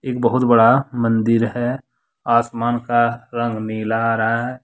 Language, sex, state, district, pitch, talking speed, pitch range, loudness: Hindi, male, Jharkhand, Deoghar, 120 Hz, 155 wpm, 115-120 Hz, -18 LUFS